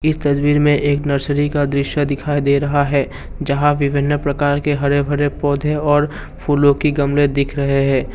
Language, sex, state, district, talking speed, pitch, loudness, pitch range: Hindi, male, Assam, Kamrup Metropolitan, 175 wpm, 145 Hz, -17 LUFS, 140-145 Hz